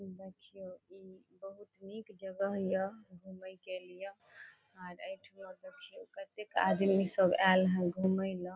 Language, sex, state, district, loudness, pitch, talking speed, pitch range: Maithili, female, Bihar, Saharsa, -33 LUFS, 190 Hz, 125 wpm, 185-200 Hz